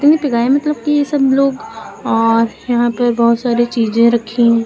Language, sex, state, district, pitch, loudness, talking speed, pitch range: Hindi, female, Uttar Pradesh, Lucknow, 240 Hz, -14 LUFS, 155 wpm, 235-275 Hz